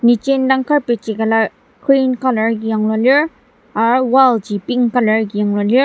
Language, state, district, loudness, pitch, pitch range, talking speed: Ao, Nagaland, Dimapur, -15 LUFS, 240 Hz, 220-260 Hz, 185 wpm